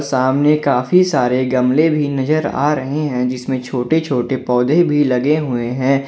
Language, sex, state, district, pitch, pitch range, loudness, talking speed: Hindi, male, Jharkhand, Ranchi, 135 Hz, 125-150 Hz, -16 LUFS, 165 wpm